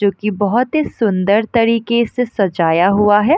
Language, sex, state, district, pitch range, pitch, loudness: Hindi, female, Bihar, Madhepura, 200-235 Hz, 215 Hz, -15 LUFS